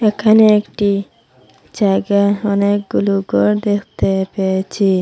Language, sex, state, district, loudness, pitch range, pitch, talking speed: Bengali, female, Assam, Hailakandi, -15 LUFS, 190-205 Hz, 200 Hz, 85 wpm